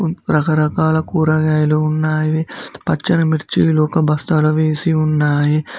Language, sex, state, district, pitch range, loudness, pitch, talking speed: Telugu, male, Telangana, Mahabubabad, 155-160 Hz, -16 LUFS, 155 Hz, 95 wpm